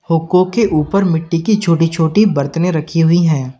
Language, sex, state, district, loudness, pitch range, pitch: Hindi, male, Uttar Pradesh, Lalitpur, -14 LUFS, 160-185 Hz, 165 Hz